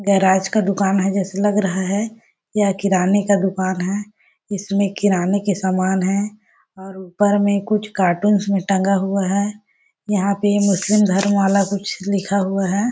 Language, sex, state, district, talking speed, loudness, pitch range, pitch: Hindi, female, Chhattisgarh, Balrampur, 165 wpm, -18 LUFS, 190-205 Hz, 200 Hz